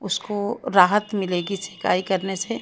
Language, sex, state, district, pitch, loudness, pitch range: Hindi, female, Himachal Pradesh, Shimla, 195 Hz, -22 LUFS, 190-210 Hz